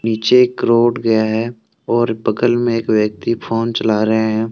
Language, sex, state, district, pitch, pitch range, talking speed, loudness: Hindi, male, Jharkhand, Deoghar, 115 Hz, 110-120 Hz, 185 wpm, -16 LUFS